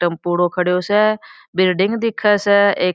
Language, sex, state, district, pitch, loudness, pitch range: Marwari, female, Rajasthan, Churu, 195 Hz, -17 LUFS, 180-210 Hz